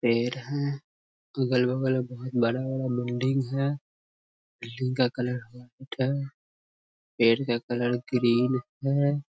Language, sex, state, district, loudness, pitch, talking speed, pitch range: Hindi, male, Bihar, Muzaffarpur, -27 LUFS, 125 Hz, 110 wpm, 120-135 Hz